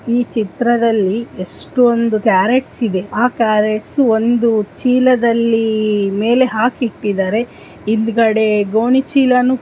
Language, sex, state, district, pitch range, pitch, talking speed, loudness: Kannada, female, Karnataka, Dharwad, 215-245 Hz, 230 Hz, 80 wpm, -15 LUFS